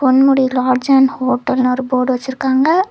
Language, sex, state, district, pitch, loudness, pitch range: Tamil, female, Tamil Nadu, Kanyakumari, 260 Hz, -14 LUFS, 255-270 Hz